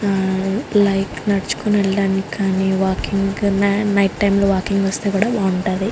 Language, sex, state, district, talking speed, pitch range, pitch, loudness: Telugu, female, Andhra Pradesh, Guntur, 120 wpm, 190-200 Hz, 195 Hz, -18 LUFS